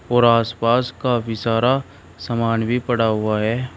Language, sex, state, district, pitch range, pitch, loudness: Hindi, male, Uttar Pradesh, Shamli, 110-120 Hz, 115 Hz, -19 LUFS